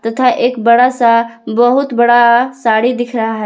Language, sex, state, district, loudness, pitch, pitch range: Hindi, female, Jharkhand, Ranchi, -11 LUFS, 240 Hz, 230-245 Hz